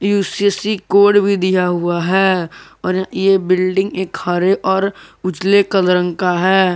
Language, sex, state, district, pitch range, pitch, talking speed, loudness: Hindi, male, Jharkhand, Garhwa, 180-195 Hz, 190 Hz, 150 wpm, -15 LUFS